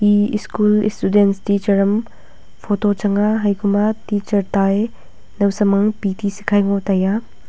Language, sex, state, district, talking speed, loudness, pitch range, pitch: Wancho, female, Arunachal Pradesh, Longding, 130 wpm, -17 LUFS, 200-210 Hz, 205 Hz